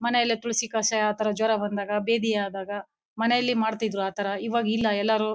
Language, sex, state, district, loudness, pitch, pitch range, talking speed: Kannada, female, Karnataka, Bellary, -25 LUFS, 220 Hz, 205-230 Hz, 180 wpm